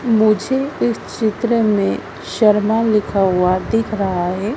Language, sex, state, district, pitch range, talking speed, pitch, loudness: Hindi, female, Madhya Pradesh, Dhar, 190-225 Hz, 130 wpm, 215 Hz, -17 LUFS